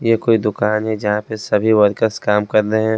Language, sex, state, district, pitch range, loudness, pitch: Hindi, male, Delhi, New Delhi, 105-110 Hz, -17 LUFS, 110 Hz